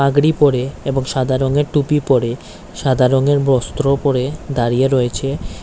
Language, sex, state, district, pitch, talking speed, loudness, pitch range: Bengali, male, Tripura, West Tripura, 135 Hz, 140 wpm, -16 LUFS, 130-140 Hz